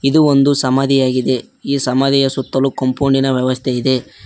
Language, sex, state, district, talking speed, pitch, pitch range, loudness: Kannada, male, Karnataka, Koppal, 140 wpm, 135 Hz, 130-135 Hz, -15 LUFS